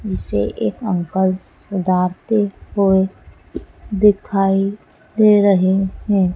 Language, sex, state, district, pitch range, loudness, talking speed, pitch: Hindi, female, Madhya Pradesh, Dhar, 185-205 Hz, -17 LUFS, 85 wpm, 195 Hz